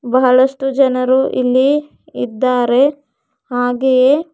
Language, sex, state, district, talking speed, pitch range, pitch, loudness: Kannada, female, Karnataka, Bidar, 70 wpm, 250-270 Hz, 260 Hz, -14 LUFS